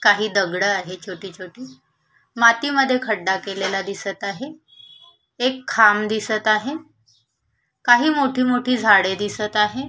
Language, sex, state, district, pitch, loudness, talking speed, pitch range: Marathi, female, Maharashtra, Solapur, 215 Hz, -19 LUFS, 120 wpm, 195-255 Hz